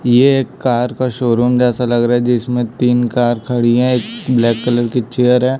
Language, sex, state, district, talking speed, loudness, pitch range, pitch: Hindi, male, Chhattisgarh, Raipur, 215 wpm, -14 LUFS, 120-125 Hz, 125 Hz